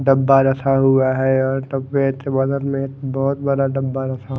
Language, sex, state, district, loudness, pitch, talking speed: Hindi, male, Haryana, Jhajjar, -18 LUFS, 135 Hz, 190 wpm